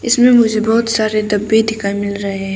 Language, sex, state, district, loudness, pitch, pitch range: Hindi, female, Arunachal Pradesh, Papum Pare, -14 LUFS, 220 Hz, 200-225 Hz